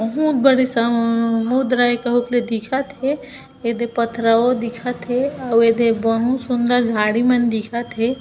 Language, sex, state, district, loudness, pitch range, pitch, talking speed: Hindi, female, Chhattisgarh, Bilaspur, -18 LUFS, 230-255 Hz, 240 Hz, 170 wpm